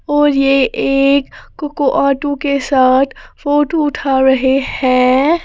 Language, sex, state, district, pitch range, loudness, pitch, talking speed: Hindi, female, Haryana, Jhajjar, 265-290 Hz, -13 LUFS, 275 Hz, 120 wpm